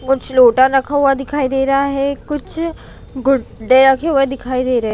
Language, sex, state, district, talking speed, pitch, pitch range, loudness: Hindi, female, Chhattisgarh, Bilaspur, 195 wpm, 270 Hz, 260-280 Hz, -15 LUFS